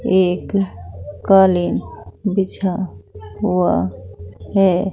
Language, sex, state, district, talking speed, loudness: Hindi, female, Bihar, Katihar, 60 wpm, -18 LUFS